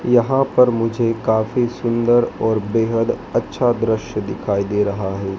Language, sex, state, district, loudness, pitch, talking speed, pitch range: Hindi, male, Madhya Pradesh, Dhar, -18 LUFS, 115 Hz, 145 wpm, 110-120 Hz